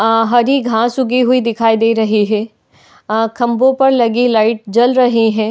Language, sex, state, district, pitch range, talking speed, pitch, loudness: Hindi, female, Uttar Pradesh, Jalaun, 220-250 Hz, 185 wpm, 230 Hz, -13 LUFS